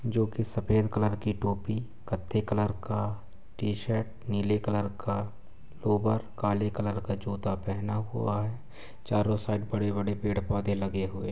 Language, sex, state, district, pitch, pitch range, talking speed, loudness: Hindi, male, Chhattisgarh, Bilaspur, 105 Hz, 100-110 Hz, 150 wpm, -31 LUFS